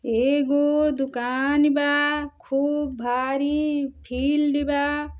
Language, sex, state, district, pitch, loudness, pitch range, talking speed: Bhojpuri, female, Uttar Pradesh, Deoria, 285 Hz, -23 LUFS, 270-295 Hz, 80 wpm